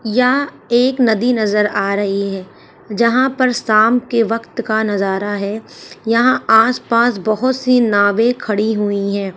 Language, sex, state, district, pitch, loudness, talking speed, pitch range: Hindi, female, Uttar Pradesh, Ghazipur, 225 Hz, -15 LUFS, 155 wpm, 205-245 Hz